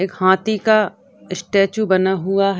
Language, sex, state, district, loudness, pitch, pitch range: Hindi, female, Bihar, Gopalganj, -17 LUFS, 195 Hz, 190-205 Hz